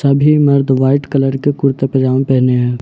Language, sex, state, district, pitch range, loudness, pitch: Hindi, male, Jharkhand, Ranchi, 130-140 Hz, -13 LUFS, 135 Hz